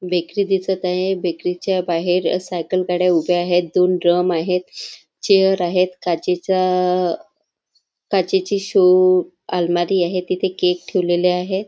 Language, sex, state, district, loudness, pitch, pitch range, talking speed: Marathi, female, Maharashtra, Nagpur, -18 LUFS, 180 Hz, 175-185 Hz, 105 wpm